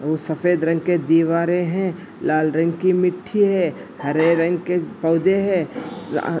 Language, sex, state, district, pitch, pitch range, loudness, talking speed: Hindi, male, Andhra Pradesh, Anantapur, 170 Hz, 165-180 Hz, -20 LUFS, 170 wpm